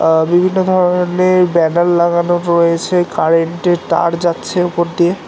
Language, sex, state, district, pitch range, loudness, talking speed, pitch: Bengali, male, West Bengal, North 24 Parganas, 170-180 Hz, -13 LUFS, 125 wpm, 175 Hz